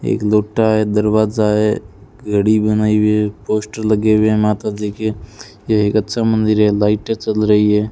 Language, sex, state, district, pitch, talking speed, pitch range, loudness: Hindi, male, Rajasthan, Bikaner, 105 Hz, 190 wpm, 105-110 Hz, -16 LUFS